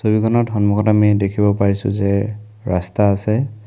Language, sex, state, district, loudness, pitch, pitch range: Assamese, male, Assam, Kamrup Metropolitan, -17 LUFS, 105 Hz, 100-110 Hz